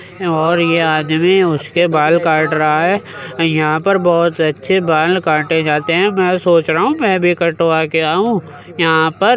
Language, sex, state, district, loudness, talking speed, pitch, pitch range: Hindi, male, Uttar Pradesh, Jyotiba Phule Nagar, -14 LUFS, 180 wpm, 165 Hz, 155-180 Hz